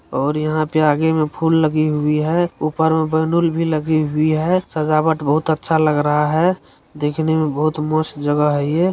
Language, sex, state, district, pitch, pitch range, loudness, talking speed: Hindi, male, Bihar, Saran, 155 Hz, 150-160 Hz, -18 LUFS, 195 wpm